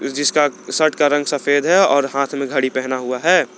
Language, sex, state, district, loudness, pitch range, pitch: Hindi, male, Jharkhand, Garhwa, -17 LUFS, 135-145 Hz, 140 Hz